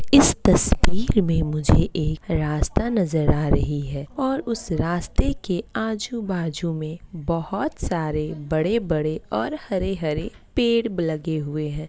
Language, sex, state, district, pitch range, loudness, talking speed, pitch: Hindi, female, Bihar, Kishanganj, 155-205 Hz, -23 LUFS, 125 wpm, 165 Hz